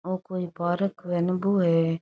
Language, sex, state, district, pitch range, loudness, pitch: Rajasthani, female, Rajasthan, Churu, 175-185 Hz, -26 LUFS, 180 Hz